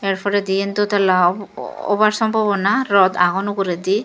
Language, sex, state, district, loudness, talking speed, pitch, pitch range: Chakma, female, Tripura, Dhalai, -17 LUFS, 135 wpm, 200 Hz, 190-205 Hz